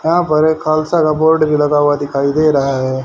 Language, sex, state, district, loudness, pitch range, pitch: Hindi, male, Haryana, Rohtak, -13 LUFS, 145-155 Hz, 155 Hz